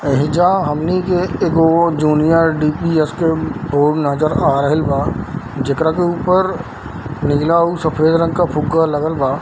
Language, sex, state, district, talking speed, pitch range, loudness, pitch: Hindi, male, Bihar, Darbhanga, 145 wpm, 145-170 Hz, -15 LUFS, 160 Hz